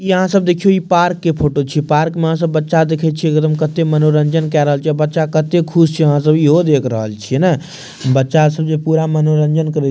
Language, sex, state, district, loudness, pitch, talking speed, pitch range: Maithili, male, Bihar, Purnia, -14 LUFS, 155 Hz, 240 wpm, 150-165 Hz